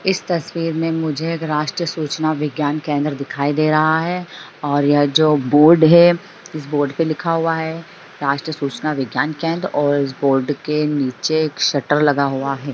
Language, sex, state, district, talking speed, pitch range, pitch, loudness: Hindi, female, Bihar, Jamui, 180 wpm, 145-165 Hz, 155 Hz, -18 LUFS